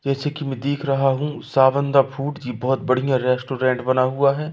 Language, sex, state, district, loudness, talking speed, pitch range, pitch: Hindi, male, Madhya Pradesh, Katni, -20 LUFS, 210 wpm, 130-140 Hz, 135 Hz